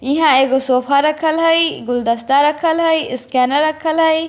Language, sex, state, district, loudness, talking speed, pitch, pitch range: Hindi, female, Bihar, Darbhanga, -15 LUFS, 155 wpm, 295 Hz, 265-320 Hz